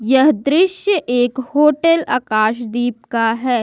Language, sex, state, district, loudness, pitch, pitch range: Hindi, female, Jharkhand, Ranchi, -16 LUFS, 255 Hz, 235-300 Hz